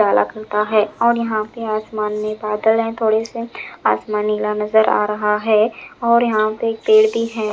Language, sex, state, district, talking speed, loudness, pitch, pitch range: Hindi, male, Punjab, Fazilka, 175 wpm, -18 LUFS, 215 Hz, 210-225 Hz